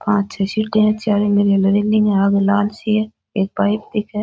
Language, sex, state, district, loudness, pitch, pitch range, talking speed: Rajasthani, female, Rajasthan, Nagaur, -17 LUFS, 205 Hz, 200-215 Hz, 185 wpm